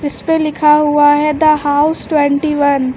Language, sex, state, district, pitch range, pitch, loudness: Hindi, female, Uttar Pradesh, Lucknow, 290-305 Hz, 300 Hz, -12 LUFS